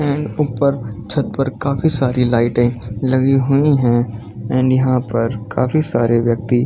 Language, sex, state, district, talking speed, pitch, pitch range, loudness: Hindi, male, Chhattisgarh, Balrampur, 155 wpm, 130 Hz, 115-135 Hz, -17 LUFS